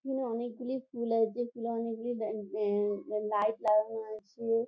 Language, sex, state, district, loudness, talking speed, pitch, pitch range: Bengali, female, West Bengal, Jhargram, -33 LUFS, 155 wpm, 230 Hz, 215-240 Hz